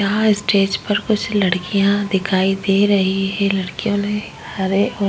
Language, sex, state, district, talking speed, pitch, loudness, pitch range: Hindi, female, Uttar Pradesh, Budaun, 165 wpm, 200 Hz, -18 LUFS, 195-205 Hz